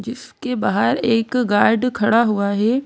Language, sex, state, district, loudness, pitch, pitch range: Hindi, female, Madhya Pradesh, Bhopal, -18 LUFS, 235 Hz, 215-250 Hz